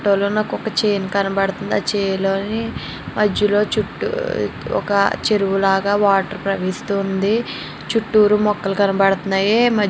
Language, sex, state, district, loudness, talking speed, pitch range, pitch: Telugu, female, Andhra Pradesh, Srikakulam, -18 LUFS, 125 wpm, 195-210 Hz, 200 Hz